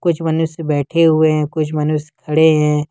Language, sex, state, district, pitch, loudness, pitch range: Hindi, male, Jharkhand, Ranchi, 155 Hz, -16 LUFS, 150-160 Hz